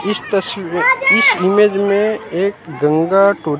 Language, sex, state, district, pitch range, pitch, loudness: Hindi, male, Haryana, Jhajjar, 175-205 Hz, 195 Hz, -14 LUFS